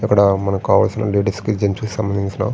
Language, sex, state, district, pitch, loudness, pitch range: Telugu, male, Andhra Pradesh, Srikakulam, 100 Hz, -18 LUFS, 100-110 Hz